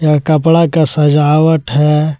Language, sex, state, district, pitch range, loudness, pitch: Hindi, male, Jharkhand, Deoghar, 150-160 Hz, -11 LUFS, 155 Hz